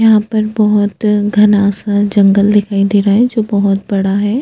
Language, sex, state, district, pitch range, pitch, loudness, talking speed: Hindi, female, Chhattisgarh, Jashpur, 200-215 Hz, 205 Hz, -12 LUFS, 190 wpm